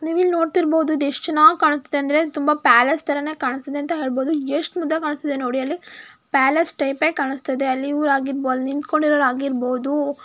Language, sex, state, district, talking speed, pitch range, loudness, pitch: Kannada, female, Karnataka, Mysore, 160 wpm, 275-315 Hz, -19 LUFS, 290 Hz